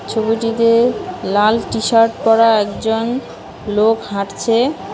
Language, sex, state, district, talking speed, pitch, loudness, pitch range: Bengali, female, West Bengal, Cooch Behar, 85 wpm, 225 Hz, -15 LUFS, 215-230 Hz